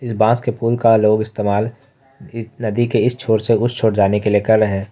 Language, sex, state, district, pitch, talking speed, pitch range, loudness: Hindi, male, Jharkhand, Ranchi, 115 Hz, 245 wpm, 110-120 Hz, -16 LUFS